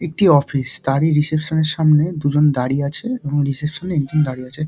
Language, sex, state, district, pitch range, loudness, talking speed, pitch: Bengali, male, West Bengal, Dakshin Dinajpur, 140-160 Hz, -18 LUFS, 205 wpm, 150 Hz